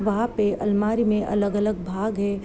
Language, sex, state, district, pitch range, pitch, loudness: Hindi, female, Uttar Pradesh, Deoria, 200-215 Hz, 210 Hz, -23 LUFS